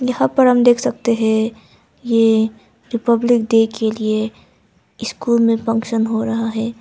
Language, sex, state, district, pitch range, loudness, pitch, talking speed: Hindi, female, Arunachal Pradesh, Papum Pare, 220-235 Hz, -17 LUFS, 225 Hz, 150 wpm